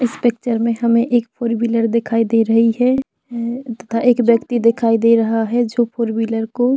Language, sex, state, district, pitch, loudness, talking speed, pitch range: Hindi, female, Chhattisgarh, Bilaspur, 235 Hz, -17 LUFS, 195 wpm, 230-240 Hz